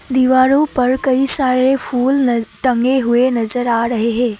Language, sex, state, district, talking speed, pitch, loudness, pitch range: Hindi, female, Assam, Kamrup Metropolitan, 150 wpm, 255 Hz, -14 LUFS, 240-260 Hz